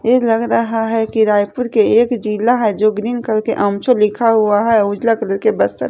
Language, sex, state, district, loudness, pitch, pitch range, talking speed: Hindi, female, Chhattisgarh, Raipur, -15 LUFS, 225 Hz, 215-235 Hz, 225 wpm